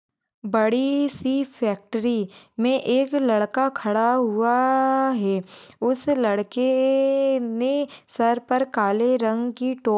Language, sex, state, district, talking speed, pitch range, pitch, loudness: Hindi, female, Maharashtra, Sindhudurg, 120 wpm, 225-265 Hz, 250 Hz, -22 LUFS